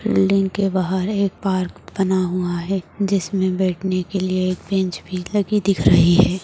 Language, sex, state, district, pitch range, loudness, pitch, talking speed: Hindi, female, Maharashtra, Solapur, 185-195 Hz, -20 LUFS, 190 Hz, 175 wpm